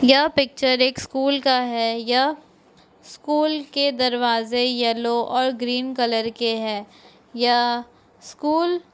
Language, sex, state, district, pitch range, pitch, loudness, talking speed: Hindi, female, Bihar, Lakhisarai, 235-280 Hz, 250 Hz, -21 LUFS, 125 wpm